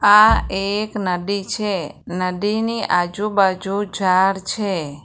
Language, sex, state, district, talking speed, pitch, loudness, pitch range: Gujarati, female, Gujarat, Valsad, 95 wpm, 195 Hz, -19 LUFS, 185-210 Hz